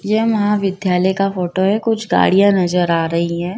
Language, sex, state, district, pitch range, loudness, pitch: Hindi, female, Madhya Pradesh, Dhar, 180-205 Hz, -16 LUFS, 190 Hz